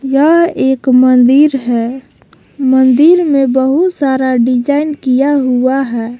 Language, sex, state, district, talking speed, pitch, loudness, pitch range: Hindi, female, Jharkhand, Palamu, 115 wpm, 265 Hz, -11 LUFS, 255-285 Hz